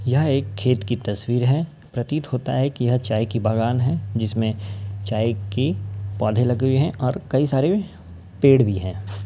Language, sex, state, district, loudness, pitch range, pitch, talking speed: Hindi, male, Uttar Pradesh, Ghazipur, -22 LUFS, 100-130 Hz, 120 Hz, 190 wpm